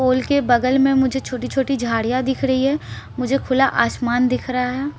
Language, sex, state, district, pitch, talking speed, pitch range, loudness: Hindi, female, Bihar, Patna, 260 Hz, 215 wpm, 250-270 Hz, -19 LUFS